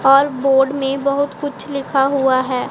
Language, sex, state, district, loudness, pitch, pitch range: Hindi, female, Punjab, Pathankot, -17 LUFS, 275 Hz, 270-280 Hz